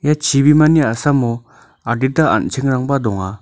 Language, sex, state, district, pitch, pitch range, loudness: Garo, male, Meghalaya, North Garo Hills, 135 Hz, 120-150 Hz, -15 LUFS